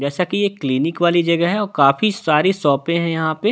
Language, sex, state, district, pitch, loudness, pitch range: Hindi, male, Delhi, New Delhi, 170 Hz, -17 LUFS, 150-195 Hz